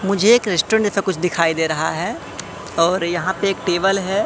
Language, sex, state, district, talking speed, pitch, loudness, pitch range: Hindi, male, Madhya Pradesh, Katni, 210 wpm, 190 Hz, -18 LUFS, 175-200 Hz